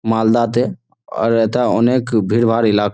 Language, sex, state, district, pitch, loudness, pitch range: Bengali, male, West Bengal, Malda, 115 Hz, -16 LUFS, 110-120 Hz